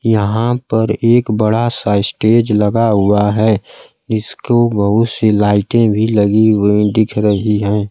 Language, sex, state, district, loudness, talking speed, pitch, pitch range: Hindi, male, Bihar, Kaimur, -13 LUFS, 145 wpm, 110 Hz, 105-115 Hz